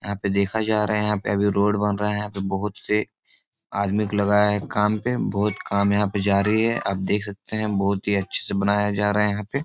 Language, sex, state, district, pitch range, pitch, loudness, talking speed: Hindi, male, Bihar, Supaul, 100-105 Hz, 105 Hz, -23 LUFS, 265 wpm